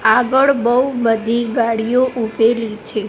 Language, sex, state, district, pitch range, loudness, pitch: Gujarati, female, Gujarat, Gandhinagar, 225-250 Hz, -16 LUFS, 230 Hz